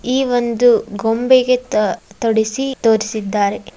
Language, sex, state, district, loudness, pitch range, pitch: Kannada, female, Karnataka, Dharwad, -16 LUFS, 215-250 Hz, 230 Hz